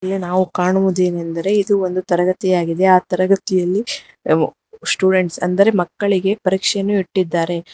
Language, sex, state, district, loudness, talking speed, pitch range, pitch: Kannada, female, Karnataka, Bangalore, -17 LUFS, 95 wpm, 180-195 Hz, 185 Hz